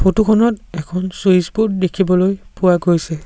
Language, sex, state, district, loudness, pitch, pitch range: Assamese, male, Assam, Sonitpur, -16 LUFS, 185 Hz, 175-200 Hz